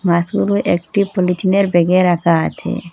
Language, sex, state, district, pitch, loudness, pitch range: Bengali, female, Assam, Hailakandi, 180 Hz, -15 LUFS, 170-195 Hz